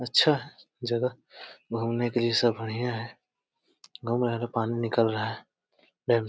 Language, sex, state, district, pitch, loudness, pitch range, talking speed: Hindi, male, Uttar Pradesh, Deoria, 120 Hz, -28 LUFS, 115-120 Hz, 160 wpm